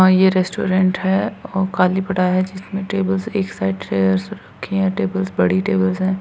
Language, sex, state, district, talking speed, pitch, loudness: Hindi, female, Rajasthan, Churu, 175 wpm, 185 Hz, -19 LUFS